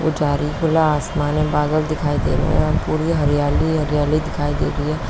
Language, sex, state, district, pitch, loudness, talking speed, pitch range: Hindi, female, Uttar Pradesh, Varanasi, 150 Hz, -19 LUFS, 175 wpm, 145-155 Hz